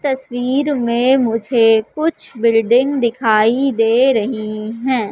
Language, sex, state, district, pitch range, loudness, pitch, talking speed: Hindi, female, Madhya Pradesh, Katni, 225-265 Hz, -16 LUFS, 235 Hz, 105 wpm